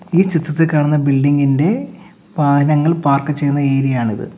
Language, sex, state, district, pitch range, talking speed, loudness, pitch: Malayalam, male, Kerala, Kollam, 140-160 Hz, 135 wpm, -15 LUFS, 145 Hz